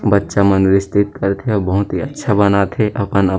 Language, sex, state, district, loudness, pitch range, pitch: Chhattisgarhi, male, Chhattisgarh, Rajnandgaon, -16 LUFS, 95-105 Hz, 100 Hz